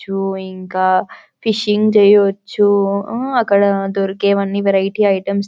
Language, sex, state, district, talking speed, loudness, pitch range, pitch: Telugu, female, Telangana, Karimnagar, 110 wpm, -15 LUFS, 195-205 Hz, 200 Hz